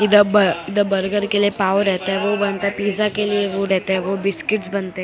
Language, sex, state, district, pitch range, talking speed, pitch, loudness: Hindi, female, Maharashtra, Mumbai Suburban, 195-205 Hz, 260 wpm, 200 Hz, -19 LUFS